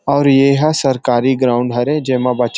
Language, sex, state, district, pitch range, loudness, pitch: Chhattisgarhi, male, Chhattisgarh, Rajnandgaon, 125-140 Hz, -14 LUFS, 130 Hz